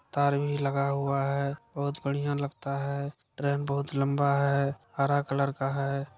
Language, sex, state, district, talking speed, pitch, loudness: Maithili, male, Bihar, Supaul, 165 wpm, 140 Hz, -29 LUFS